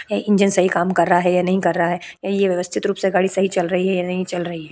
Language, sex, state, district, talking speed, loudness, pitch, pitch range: Hindi, female, Uttar Pradesh, Budaun, 330 wpm, -19 LUFS, 180 Hz, 175-190 Hz